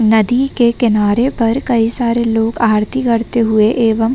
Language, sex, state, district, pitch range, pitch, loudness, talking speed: Hindi, female, Uttar Pradesh, Varanasi, 225-240 Hz, 230 Hz, -14 LUFS, 175 wpm